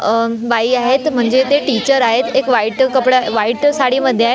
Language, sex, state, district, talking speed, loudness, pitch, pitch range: Marathi, female, Maharashtra, Gondia, 180 wpm, -14 LUFS, 250 Hz, 230-265 Hz